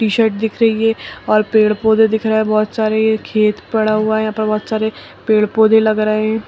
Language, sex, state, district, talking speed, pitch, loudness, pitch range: Kumaoni, male, Uttarakhand, Uttarkashi, 240 wpm, 220 Hz, -15 LUFS, 215-220 Hz